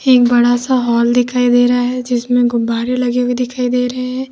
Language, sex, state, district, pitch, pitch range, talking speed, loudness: Hindi, female, Uttar Pradesh, Lalitpur, 245 Hz, 245-250 Hz, 220 wpm, -14 LUFS